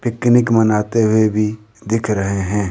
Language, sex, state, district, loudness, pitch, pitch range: Hindi, male, Rajasthan, Jaipur, -16 LUFS, 110 Hz, 105-115 Hz